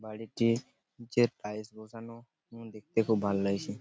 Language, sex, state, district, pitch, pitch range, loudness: Bengali, male, West Bengal, Purulia, 115 Hz, 105-115 Hz, -31 LUFS